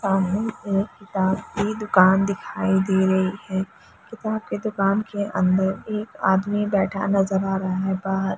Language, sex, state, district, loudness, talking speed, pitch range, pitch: Hindi, female, Bihar, Gaya, -22 LUFS, 155 wpm, 190-205 Hz, 195 Hz